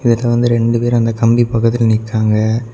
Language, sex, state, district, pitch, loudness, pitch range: Tamil, male, Tamil Nadu, Kanyakumari, 115 Hz, -14 LUFS, 115-120 Hz